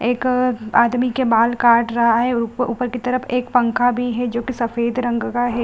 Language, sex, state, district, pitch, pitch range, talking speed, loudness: Hindi, female, Bihar, Gaya, 245 Hz, 235-250 Hz, 225 wpm, -18 LUFS